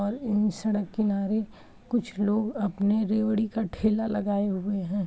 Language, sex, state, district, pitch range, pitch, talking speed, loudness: Hindi, male, Uttar Pradesh, Varanasi, 200-220 Hz, 210 Hz, 155 wpm, -27 LUFS